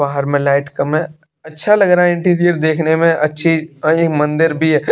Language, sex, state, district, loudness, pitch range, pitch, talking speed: Hindi, male, Bihar, West Champaran, -14 LUFS, 150-165 Hz, 160 Hz, 205 wpm